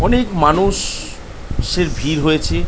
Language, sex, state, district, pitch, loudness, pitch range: Bengali, male, West Bengal, North 24 Parganas, 155 Hz, -17 LUFS, 150-185 Hz